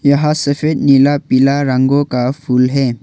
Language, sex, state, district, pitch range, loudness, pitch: Hindi, male, Arunachal Pradesh, Longding, 130-145 Hz, -13 LUFS, 140 Hz